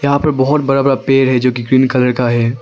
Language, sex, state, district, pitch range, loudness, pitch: Hindi, male, Arunachal Pradesh, Longding, 125-135 Hz, -13 LUFS, 130 Hz